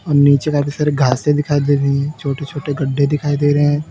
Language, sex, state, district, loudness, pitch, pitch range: Hindi, male, Uttar Pradesh, Lalitpur, -16 LUFS, 145 Hz, 140-145 Hz